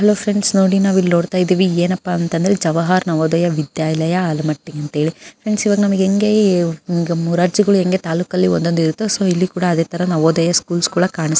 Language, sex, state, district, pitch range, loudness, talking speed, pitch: Kannada, female, Karnataka, Bijapur, 165-190 Hz, -16 LUFS, 145 wpm, 175 Hz